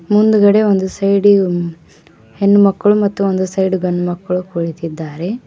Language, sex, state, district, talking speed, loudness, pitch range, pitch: Kannada, male, Karnataka, Koppal, 100 wpm, -14 LUFS, 175-205 Hz, 190 Hz